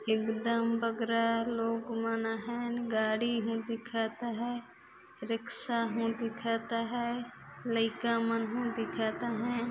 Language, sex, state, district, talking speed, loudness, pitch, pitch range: Chhattisgarhi, female, Chhattisgarh, Balrampur, 110 wpm, -33 LUFS, 230 Hz, 225-235 Hz